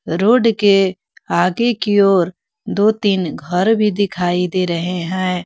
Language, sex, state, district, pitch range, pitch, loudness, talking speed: Hindi, female, Jharkhand, Garhwa, 180-205 Hz, 185 Hz, -16 LUFS, 145 wpm